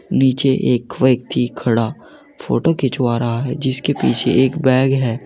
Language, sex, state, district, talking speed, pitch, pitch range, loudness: Hindi, male, Uttar Pradesh, Saharanpur, 150 wpm, 130 Hz, 120-135 Hz, -17 LUFS